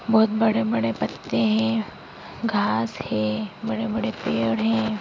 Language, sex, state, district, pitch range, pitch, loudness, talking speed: Hindi, female, Uttarakhand, Tehri Garhwal, 110-120 Hz, 110 Hz, -24 LUFS, 110 wpm